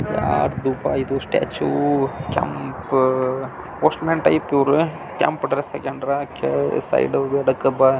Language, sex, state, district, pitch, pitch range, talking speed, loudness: Kannada, male, Karnataka, Belgaum, 135 Hz, 130-140 Hz, 120 wpm, -21 LUFS